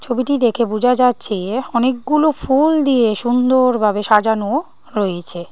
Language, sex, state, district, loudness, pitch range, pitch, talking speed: Bengali, female, Tripura, Dhalai, -16 LUFS, 215-265 Hz, 245 Hz, 120 wpm